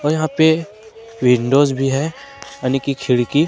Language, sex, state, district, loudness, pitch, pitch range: Hindi, male, Jharkhand, Ranchi, -17 LUFS, 140 Hz, 135-160 Hz